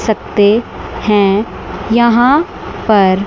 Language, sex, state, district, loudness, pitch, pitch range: Hindi, female, Chandigarh, Chandigarh, -12 LUFS, 215 Hz, 205-235 Hz